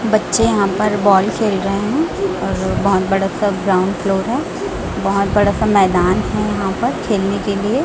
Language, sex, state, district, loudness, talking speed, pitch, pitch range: Hindi, female, Chhattisgarh, Raipur, -16 LUFS, 190 wpm, 200 Hz, 195-210 Hz